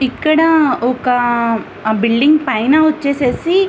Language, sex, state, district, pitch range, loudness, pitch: Telugu, female, Andhra Pradesh, Visakhapatnam, 240-310 Hz, -14 LUFS, 265 Hz